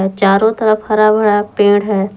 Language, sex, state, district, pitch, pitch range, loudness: Hindi, female, Jharkhand, Palamu, 205 Hz, 200-215 Hz, -12 LUFS